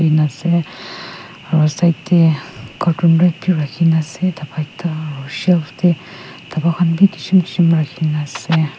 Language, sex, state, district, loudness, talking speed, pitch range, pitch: Nagamese, female, Nagaland, Kohima, -16 LUFS, 165 wpm, 155-175 Hz, 165 Hz